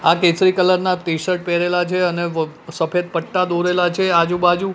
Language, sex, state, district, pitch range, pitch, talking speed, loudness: Gujarati, male, Gujarat, Gandhinagar, 170-180 Hz, 175 Hz, 175 wpm, -18 LUFS